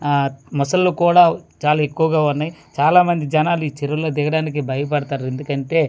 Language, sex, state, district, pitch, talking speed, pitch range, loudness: Telugu, male, Andhra Pradesh, Manyam, 150 Hz, 145 wpm, 145-160 Hz, -18 LUFS